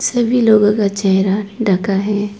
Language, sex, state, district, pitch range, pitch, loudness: Hindi, female, Arunachal Pradesh, Papum Pare, 195-220 Hz, 205 Hz, -15 LUFS